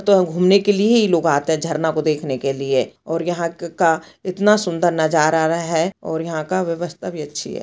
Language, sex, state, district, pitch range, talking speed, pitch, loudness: Hindi, female, Chhattisgarh, Bastar, 160-185 Hz, 230 wpm, 165 Hz, -19 LUFS